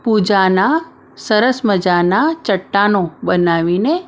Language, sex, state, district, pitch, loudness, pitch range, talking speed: Gujarati, female, Maharashtra, Mumbai Suburban, 205 Hz, -15 LUFS, 185-250 Hz, 75 wpm